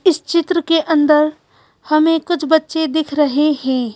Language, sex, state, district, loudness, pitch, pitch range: Hindi, female, Madhya Pradesh, Bhopal, -15 LUFS, 315 Hz, 300-325 Hz